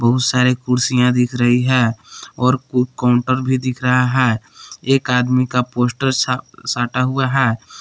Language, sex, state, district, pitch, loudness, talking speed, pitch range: Hindi, male, Jharkhand, Palamu, 125 Hz, -17 LUFS, 155 wpm, 125-130 Hz